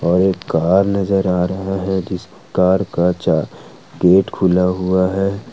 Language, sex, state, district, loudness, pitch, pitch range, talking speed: Hindi, male, Jharkhand, Ranchi, -17 LUFS, 95 Hz, 90-95 Hz, 165 wpm